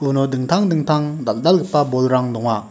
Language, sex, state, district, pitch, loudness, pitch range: Garo, male, Meghalaya, West Garo Hills, 140 Hz, -18 LUFS, 130-155 Hz